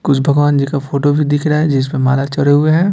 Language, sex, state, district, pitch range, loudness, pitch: Hindi, male, Bihar, Patna, 140-150 Hz, -14 LUFS, 145 Hz